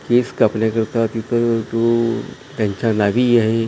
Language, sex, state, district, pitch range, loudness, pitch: Marathi, male, Maharashtra, Gondia, 110-120 Hz, -18 LUFS, 115 Hz